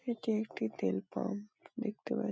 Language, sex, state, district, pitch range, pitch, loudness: Bengali, female, West Bengal, Paschim Medinipur, 200-240 Hz, 220 Hz, -37 LUFS